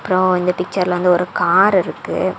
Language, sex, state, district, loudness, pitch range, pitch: Tamil, female, Tamil Nadu, Kanyakumari, -16 LUFS, 180-185 Hz, 180 Hz